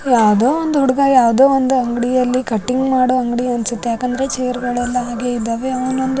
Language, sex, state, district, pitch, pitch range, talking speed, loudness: Kannada, female, Karnataka, Raichur, 250 Hz, 240-260 Hz, 155 wpm, -16 LUFS